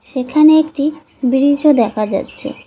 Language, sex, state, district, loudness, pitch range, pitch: Bengali, female, West Bengal, Cooch Behar, -14 LUFS, 255-305 Hz, 280 Hz